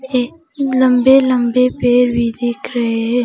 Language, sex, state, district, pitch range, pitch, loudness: Hindi, female, Arunachal Pradesh, Papum Pare, 240-260 Hz, 250 Hz, -14 LUFS